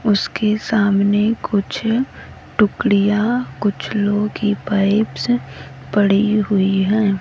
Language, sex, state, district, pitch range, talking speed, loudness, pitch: Hindi, female, Haryana, Rohtak, 200-215 Hz, 90 wpm, -18 LUFS, 210 Hz